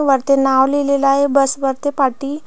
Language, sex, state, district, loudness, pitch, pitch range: Marathi, female, Maharashtra, Pune, -15 LUFS, 275 Hz, 270-280 Hz